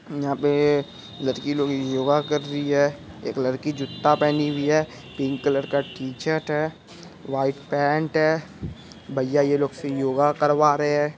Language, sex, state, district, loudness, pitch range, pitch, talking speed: Hindi, male, Bihar, Araria, -23 LUFS, 140-150 Hz, 145 Hz, 160 wpm